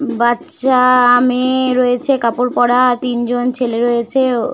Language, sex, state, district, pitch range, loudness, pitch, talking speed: Bengali, female, West Bengal, Malda, 240-255 Hz, -14 LUFS, 250 Hz, 160 wpm